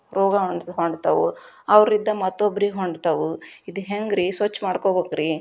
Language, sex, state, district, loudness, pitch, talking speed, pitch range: Kannada, female, Karnataka, Dharwad, -22 LUFS, 195 Hz, 100 wpm, 180-210 Hz